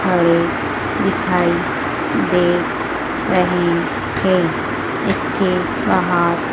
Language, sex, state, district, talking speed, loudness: Hindi, female, Madhya Pradesh, Dhar, 65 wpm, -17 LUFS